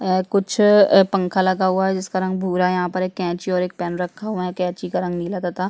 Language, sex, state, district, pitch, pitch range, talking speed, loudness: Hindi, female, Chhattisgarh, Bastar, 185 Hz, 180-190 Hz, 265 wpm, -20 LUFS